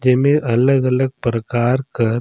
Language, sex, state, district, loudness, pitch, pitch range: Surgujia, male, Chhattisgarh, Sarguja, -17 LUFS, 125 Hz, 120-130 Hz